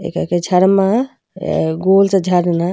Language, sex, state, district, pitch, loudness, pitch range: Bhojpuri, female, Uttar Pradesh, Gorakhpur, 180 Hz, -15 LUFS, 175-195 Hz